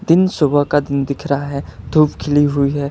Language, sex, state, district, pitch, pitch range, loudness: Hindi, male, Karnataka, Bangalore, 145 Hz, 140-150 Hz, -16 LUFS